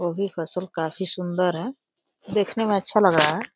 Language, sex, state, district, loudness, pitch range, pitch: Hindi, female, Uttar Pradesh, Deoria, -23 LUFS, 170-205 Hz, 185 Hz